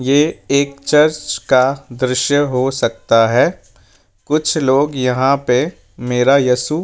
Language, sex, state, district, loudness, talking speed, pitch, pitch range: Hindi, male, Rajasthan, Jaipur, -15 LUFS, 130 wpm, 130 Hz, 125-140 Hz